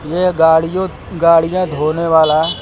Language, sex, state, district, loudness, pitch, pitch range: Hindi, male, Uttar Pradesh, Lucknow, -14 LUFS, 165 Hz, 160-175 Hz